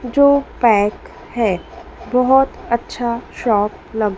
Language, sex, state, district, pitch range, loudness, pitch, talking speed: Hindi, female, Madhya Pradesh, Dhar, 215-250 Hz, -17 LUFS, 235 Hz, 100 wpm